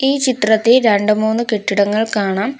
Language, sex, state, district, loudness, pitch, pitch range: Malayalam, female, Kerala, Kollam, -15 LUFS, 220 Hz, 205-245 Hz